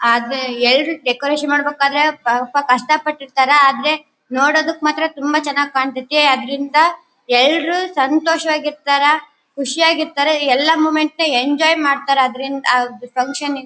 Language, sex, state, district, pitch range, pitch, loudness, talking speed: Kannada, female, Karnataka, Bellary, 265-310 Hz, 285 Hz, -15 LUFS, 130 wpm